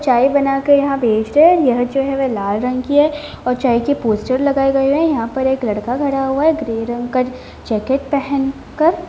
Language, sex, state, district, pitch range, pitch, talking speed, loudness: Hindi, female, Bihar, Gopalganj, 245-280 Hz, 270 Hz, 210 wpm, -16 LUFS